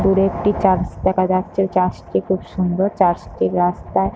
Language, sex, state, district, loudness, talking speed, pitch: Bengali, female, West Bengal, North 24 Parganas, -19 LUFS, 215 wpm, 185 Hz